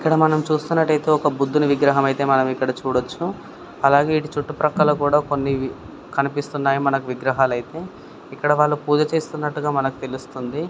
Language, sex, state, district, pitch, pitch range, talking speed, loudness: Telugu, male, Karnataka, Dharwad, 145 Hz, 135-150 Hz, 135 wpm, -20 LUFS